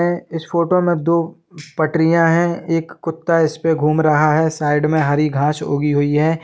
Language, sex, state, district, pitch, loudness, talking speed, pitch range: Hindi, male, Jharkhand, Sahebganj, 160 Hz, -17 LUFS, 185 wpm, 150-165 Hz